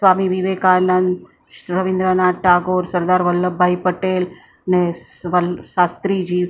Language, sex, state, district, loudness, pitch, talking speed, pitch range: Gujarati, female, Maharashtra, Mumbai Suburban, -18 LUFS, 180 Hz, 100 wpm, 180-185 Hz